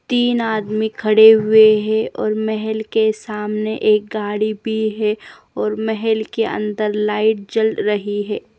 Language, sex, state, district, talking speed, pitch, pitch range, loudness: Hindi, female, Himachal Pradesh, Shimla, 145 wpm, 215 Hz, 210-220 Hz, -17 LUFS